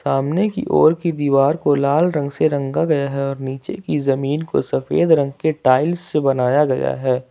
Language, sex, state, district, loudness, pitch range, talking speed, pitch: Hindi, male, Jharkhand, Ranchi, -18 LUFS, 135-155 Hz, 205 wpm, 140 Hz